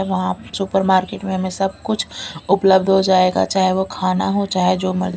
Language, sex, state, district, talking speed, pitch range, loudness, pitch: Hindi, female, Delhi, New Delhi, 185 wpm, 185-195 Hz, -18 LUFS, 190 Hz